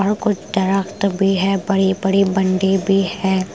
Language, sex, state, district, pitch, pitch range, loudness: Hindi, female, Punjab, Pathankot, 195 Hz, 190-195 Hz, -17 LUFS